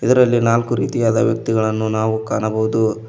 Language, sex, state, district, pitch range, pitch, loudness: Kannada, male, Karnataka, Koppal, 110-115 Hz, 110 Hz, -17 LUFS